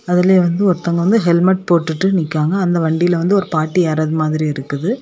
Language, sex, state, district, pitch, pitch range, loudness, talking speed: Tamil, female, Tamil Nadu, Kanyakumari, 175 Hz, 160-185 Hz, -15 LUFS, 180 wpm